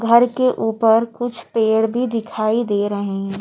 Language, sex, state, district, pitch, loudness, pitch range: Hindi, female, Madhya Pradesh, Bhopal, 225 Hz, -18 LUFS, 215-235 Hz